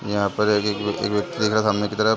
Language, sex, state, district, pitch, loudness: Hindi, male, Chhattisgarh, Raigarh, 105 Hz, -22 LUFS